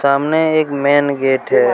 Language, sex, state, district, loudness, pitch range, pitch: Hindi, male, Jharkhand, Deoghar, -15 LUFS, 140-155 Hz, 140 Hz